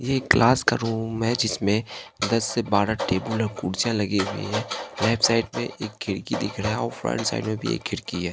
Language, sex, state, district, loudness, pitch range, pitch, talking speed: Hindi, male, Bihar, Katihar, -24 LUFS, 100-115 Hz, 110 Hz, 215 wpm